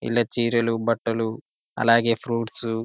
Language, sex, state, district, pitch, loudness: Telugu, male, Telangana, Karimnagar, 115 Hz, -23 LUFS